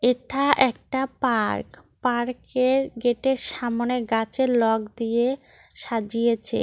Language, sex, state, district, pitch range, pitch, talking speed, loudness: Bengali, female, West Bengal, Cooch Behar, 230-265 Hz, 245 Hz, 90 wpm, -23 LUFS